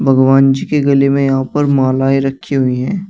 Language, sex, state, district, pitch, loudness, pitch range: Hindi, male, Uttar Pradesh, Shamli, 135 Hz, -13 LUFS, 135-140 Hz